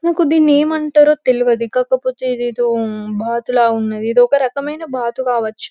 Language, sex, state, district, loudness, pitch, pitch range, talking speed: Telugu, female, Telangana, Karimnagar, -15 LUFS, 250 Hz, 235-290 Hz, 145 wpm